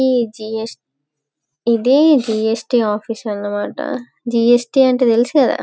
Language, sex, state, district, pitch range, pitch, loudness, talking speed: Telugu, female, Telangana, Karimnagar, 210-255 Hz, 230 Hz, -16 LUFS, 105 wpm